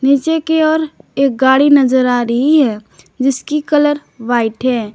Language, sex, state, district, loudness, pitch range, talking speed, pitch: Hindi, female, Jharkhand, Garhwa, -13 LUFS, 245-295 Hz, 155 wpm, 270 Hz